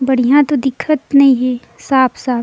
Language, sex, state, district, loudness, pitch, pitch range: Surgujia, female, Chhattisgarh, Sarguja, -13 LUFS, 265 Hz, 255-280 Hz